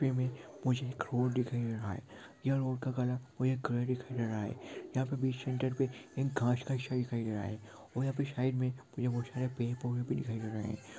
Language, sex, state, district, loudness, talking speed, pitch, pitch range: Hindi, male, Chhattisgarh, Sukma, -36 LUFS, 255 wpm, 125 Hz, 120-130 Hz